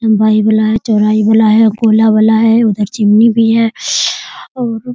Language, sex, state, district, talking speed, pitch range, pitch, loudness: Hindi, female, Bihar, Muzaffarpur, 180 wpm, 215-225 Hz, 220 Hz, -10 LUFS